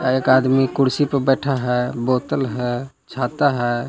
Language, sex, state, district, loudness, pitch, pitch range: Hindi, male, Jharkhand, Palamu, -19 LUFS, 130 Hz, 125-135 Hz